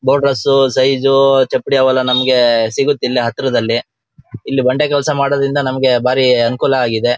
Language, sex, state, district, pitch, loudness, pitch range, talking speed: Kannada, male, Karnataka, Shimoga, 130 Hz, -13 LUFS, 125-140 Hz, 135 wpm